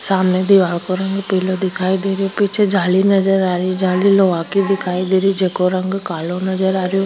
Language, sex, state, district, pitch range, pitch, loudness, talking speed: Rajasthani, female, Rajasthan, Churu, 185-195 Hz, 190 Hz, -16 LUFS, 195 wpm